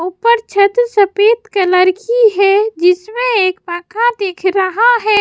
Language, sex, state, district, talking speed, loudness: Hindi, female, Bihar, West Champaran, 140 wpm, -13 LUFS